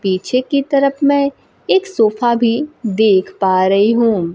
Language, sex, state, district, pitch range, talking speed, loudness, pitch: Hindi, female, Bihar, Kaimur, 195-280 Hz, 150 wpm, -15 LUFS, 235 Hz